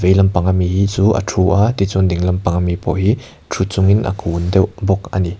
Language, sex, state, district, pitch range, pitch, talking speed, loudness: Mizo, male, Mizoram, Aizawl, 90-100 Hz, 95 Hz, 265 wpm, -16 LUFS